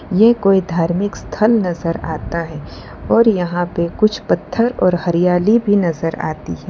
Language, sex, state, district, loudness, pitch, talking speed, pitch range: Hindi, female, Gujarat, Valsad, -16 LUFS, 180 Hz, 160 wpm, 170-215 Hz